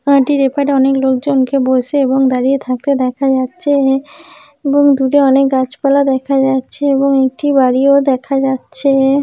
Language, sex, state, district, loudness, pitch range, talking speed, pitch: Bengali, female, West Bengal, Paschim Medinipur, -13 LUFS, 265-280 Hz, 150 wpm, 275 Hz